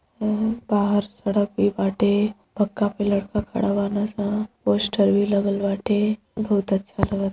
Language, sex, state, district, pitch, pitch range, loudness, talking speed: Bhojpuri, female, Uttar Pradesh, Deoria, 205 Hz, 200-210 Hz, -23 LUFS, 140 wpm